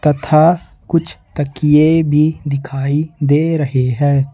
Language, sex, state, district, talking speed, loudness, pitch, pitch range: Hindi, male, Jharkhand, Ranchi, 110 wpm, -15 LUFS, 150 Hz, 140-160 Hz